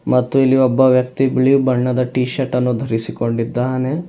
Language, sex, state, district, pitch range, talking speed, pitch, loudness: Kannada, male, Karnataka, Bidar, 125-130 Hz, 145 wpm, 125 Hz, -16 LUFS